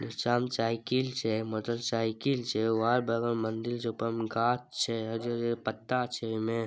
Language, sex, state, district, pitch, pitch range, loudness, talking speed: Maithili, male, Bihar, Samastipur, 115 Hz, 115-120 Hz, -31 LUFS, 200 wpm